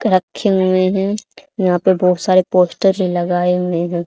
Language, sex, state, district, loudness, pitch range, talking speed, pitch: Hindi, female, Haryana, Charkhi Dadri, -15 LUFS, 180-190 Hz, 160 wpm, 185 Hz